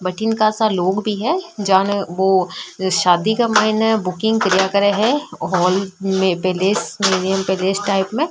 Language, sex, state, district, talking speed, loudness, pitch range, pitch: Marwari, female, Rajasthan, Nagaur, 150 wpm, -17 LUFS, 185-215 Hz, 195 Hz